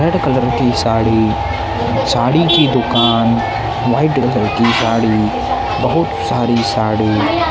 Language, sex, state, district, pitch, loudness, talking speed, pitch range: Hindi, male, Maharashtra, Mumbai Suburban, 115 Hz, -14 LUFS, 120 wpm, 115-125 Hz